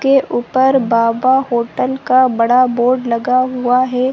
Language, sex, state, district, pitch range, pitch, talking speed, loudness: Hindi, female, Chhattisgarh, Sarguja, 240-260 Hz, 255 Hz, 145 wpm, -14 LUFS